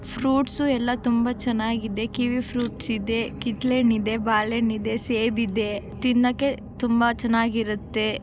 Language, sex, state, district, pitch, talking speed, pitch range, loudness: Kannada, female, Karnataka, Gulbarga, 235 Hz, 115 wpm, 225-245 Hz, -24 LUFS